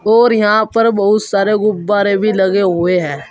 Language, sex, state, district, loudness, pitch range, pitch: Hindi, male, Uttar Pradesh, Saharanpur, -13 LUFS, 190-215 Hz, 205 Hz